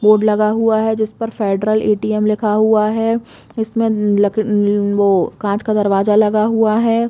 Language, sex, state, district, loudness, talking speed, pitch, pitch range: Hindi, female, Chhattisgarh, Bastar, -15 LUFS, 170 wpm, 215 Hz, 210-220 Hz